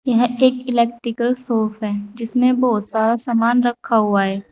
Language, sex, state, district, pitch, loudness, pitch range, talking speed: Hindi, female, Uttar Pradesh, Saharanpur, 235 Hz, -18 LUFS, 220-245 Hz, 160 wpm